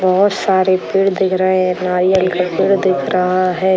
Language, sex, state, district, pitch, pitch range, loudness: Hindi, male, Bihar, Sitamarhi, 185 Hz, 185-190 Hz, -15 LUFS